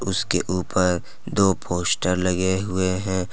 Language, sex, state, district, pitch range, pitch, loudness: Hindi, male, Jharkhand, Deoghar, 90-95 Hz, 90 Hz, -22 LUFS